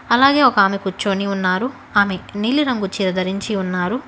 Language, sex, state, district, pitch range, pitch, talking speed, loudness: Telugu, female, Telangana, Hyderabad, 190-245 Hz, 200 Hz, 160 wpm, -18 LUFS